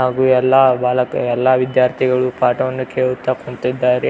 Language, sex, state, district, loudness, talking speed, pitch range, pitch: Kannada, male, Karnataka, Belgaum, -16 LUFS, 115 wpm, 125-130 Hz, 125 Hz